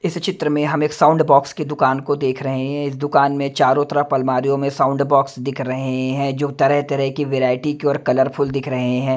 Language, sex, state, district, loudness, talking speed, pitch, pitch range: Hindi, male, Himachal Pradesh, Shimla, -18 LUFS, 235 wpm, 140 Hz, 130-145 Hz